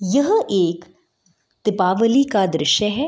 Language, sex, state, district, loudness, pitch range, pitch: Hindi, female, Bihar, Gopalganj, -18 LUFS, 180-250 Hz, 205 Hz